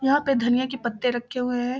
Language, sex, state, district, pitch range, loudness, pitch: Hindi, female, Bihar, Samastipur, 245-265 Hz, -24 LUFS, 250 Hz